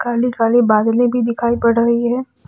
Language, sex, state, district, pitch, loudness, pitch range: Hindi, female, Jharkhand, Deoghar, 235 Hz, -15 LUFS, 235-245 Hz